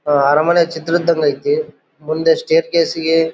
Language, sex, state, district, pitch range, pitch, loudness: Kannada, male, Karnataka, Bellary, 160-170 Hz, 165 Hz, -15 LUFS